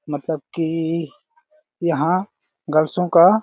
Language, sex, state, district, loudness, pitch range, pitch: Hindi, male, Chhattisgarh, Balrampur, -20 LUFS, 155-195 Hz, 170 Hz